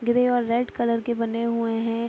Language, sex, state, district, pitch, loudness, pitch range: Hindi, female, Bihar, Araria, 235 Hz, -24 LUFS, 230-240 Hz